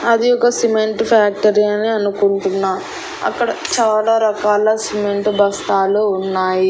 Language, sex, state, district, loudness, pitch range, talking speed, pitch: Telugu, female, Andhra Pradesh, Annamaya, -16 LUFS, 200-220 Hz, 105 wpm, 210 Hz